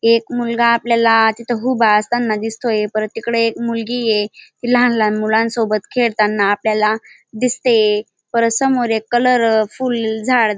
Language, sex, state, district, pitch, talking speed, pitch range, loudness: Marathi, female, Maharashtra, Dhule, 230 Hz, 140 wpm, 215-240 Hz, -16 LUFS